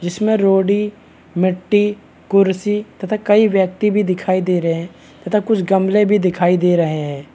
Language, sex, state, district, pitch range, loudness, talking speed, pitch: Hindi, male, Bihar, Madhepura, 180-210 Hz, -16 LUFS, 170 wpm, 195 Hz